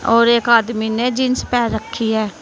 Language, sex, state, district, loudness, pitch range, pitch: Hindi, female, Uttar Pradesh, Saharanpur, -16 LUFS, 225-240 Hz, 235 Hz